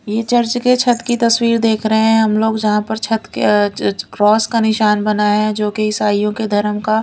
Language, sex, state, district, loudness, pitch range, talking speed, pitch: Hindi, female, Delhi, New Delhi, -15 LUFS, 210-225 Hz, 220 wpm, 220 Hz